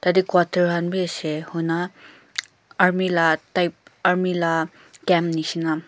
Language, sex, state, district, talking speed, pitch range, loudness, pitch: Nagamese, female, Nagaland, Kohima, 135 wpm, 165-180 Hz, -22 LUFS, 175 Hz